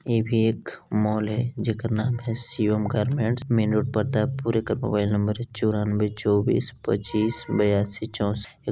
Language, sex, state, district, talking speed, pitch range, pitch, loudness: Hindi, male, Chhattisgarh, Balrampur, 150 wpm, 105-120 Hz, 110 Hz, -24 LUFS